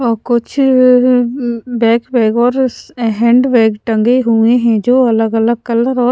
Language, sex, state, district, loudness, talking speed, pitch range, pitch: Hindi, female, Punjab, Pathankot, -12 LUFS, 175 wpm, 230-250 Hz, 240 Hz